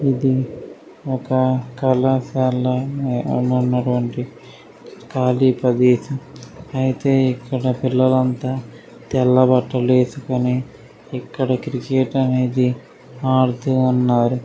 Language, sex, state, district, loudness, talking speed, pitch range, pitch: Telugu, male, Telangana, Karimnagar, -19 LUFS, 65 wpm, 125-130 Hz, 130 Hz